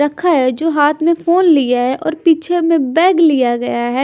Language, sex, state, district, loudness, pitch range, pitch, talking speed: Hindi, female, Punjab, Pathankot, -13 LUFS, 265-335 Hz, 315 Hz, 225 wpm